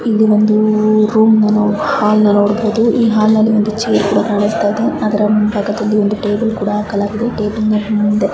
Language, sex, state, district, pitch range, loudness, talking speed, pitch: Kannada, female, Karnataka, Bijapur, 210-220 Hz, -13 LUFS, 145 wpm, 215 Hz